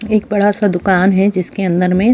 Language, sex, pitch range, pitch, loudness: Urdu, female, 185-205 Hz, 195 Hz, -14 LUFS